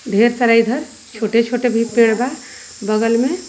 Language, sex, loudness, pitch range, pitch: Sadri, female, -16 LUFS, 230-250 Hz, 235 Hz